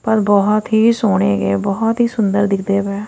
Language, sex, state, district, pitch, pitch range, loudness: Punjabi, female, Punjab, Fazilka, 205 Hz, 195-220 Hz, -15 LUFS